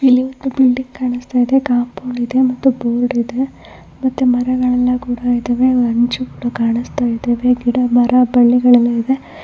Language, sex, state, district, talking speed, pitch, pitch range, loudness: Kannada, female, Karnataka, Mysore, 115 wpm, 250 Hz, 245-255 Hz, -15 LUFS